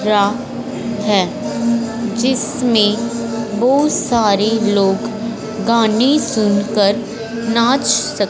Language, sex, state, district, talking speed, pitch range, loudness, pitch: Hindi, female, Punjab, Fazilka, 70 wpm, 215-235 Hz, -16 LUFS, 225 Hz